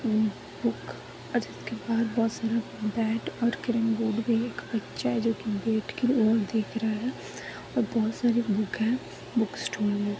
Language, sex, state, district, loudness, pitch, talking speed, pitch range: Hindi, female, Chhattisgarh, Balrampur, -28 LUFS, 225 Hz, 180 wpm, 215-230 Hz